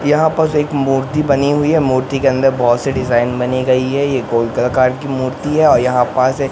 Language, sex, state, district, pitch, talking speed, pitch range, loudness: Hindi, male, Madhya Pradesh, Katni, 135 Hz, 220 wpm, 130-145 Hz, -15 LUFS